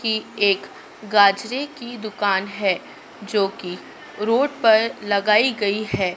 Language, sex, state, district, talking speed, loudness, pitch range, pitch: Hindi, female, Madhya Pradesh, Dhar, 125 wpm, -20 LUFS, 200-225 Hz, 210 Hz